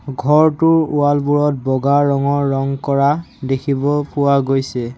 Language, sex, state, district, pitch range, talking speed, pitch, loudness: Assamese, male, Assam, Sonitpur, 135-145 Hz, 120 wpm, 140 Hz, -16 LUFS